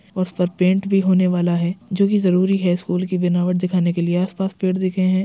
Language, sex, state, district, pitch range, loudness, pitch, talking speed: Hindi, male, Uttar Pradesh, Jyotiba Phule Nagar, 180-190 Hz, -19 LUFS, 185 Hz, 240 wpm